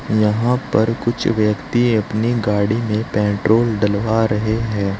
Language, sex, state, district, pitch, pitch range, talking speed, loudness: Hindi, male, Uttar Pradesh, Saharanpur, 110 Hz, 105-115 Hz, 130 wpm, -18 LUFS